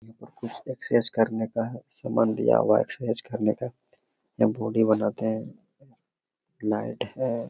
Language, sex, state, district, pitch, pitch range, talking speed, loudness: Hindi, male, Jharkhand, Sahebganj, 110 Hz, 110-120 Hz, 170 wpm, -26 LUFS